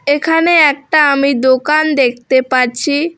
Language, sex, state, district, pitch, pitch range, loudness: Bengali, female, West Bengal, Alipurduar, 285 Hz, 260-310 Hz, -12 LUFS